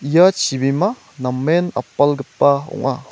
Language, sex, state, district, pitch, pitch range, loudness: Garo, male, Meghalaya, West Garo Hills, 140 Hz, 135-170 Hz, -17 LUFS